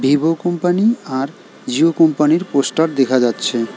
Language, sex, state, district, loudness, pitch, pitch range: Bengali, male, West Bengal, Alipurduar, -16 LUFS, 160 Hz, 135-190 Hz